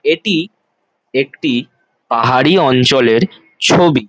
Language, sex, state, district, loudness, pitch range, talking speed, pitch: Bengali, male, West Bengal, Jalpaiguri, -13 LUFS, 130-195 Hz, 90 wpm, 160 Hz